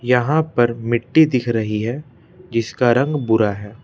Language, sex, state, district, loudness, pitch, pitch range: Hindi, male, Madhya Pradesh, Bhopal, -18 LUFS, 120 Hz, 115-140 Hz